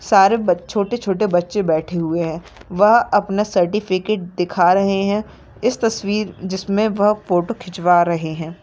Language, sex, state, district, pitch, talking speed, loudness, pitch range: Hindi, female, Maharashtra, Nagpur, 195 Hz, 145 wpm, -18 LUFS, 175-210 Hz